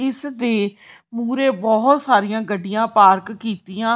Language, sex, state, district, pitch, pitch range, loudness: Punjabi, female, Punjab, Kapurthala, 225 Hz, 205-250 Hz, -18 LUFS